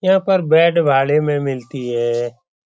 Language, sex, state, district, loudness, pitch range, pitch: Hindi, male, Bihar, Saran, -16 LUFS, 120-170 Hz, 145 Hz